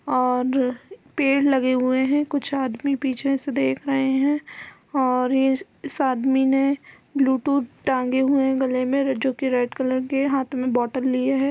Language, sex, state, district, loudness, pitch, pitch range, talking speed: Hindi, female, Uttar Pradesh, Budaun, -22 LUFS, 265 Hz, 255-275 Hz, 170 wpm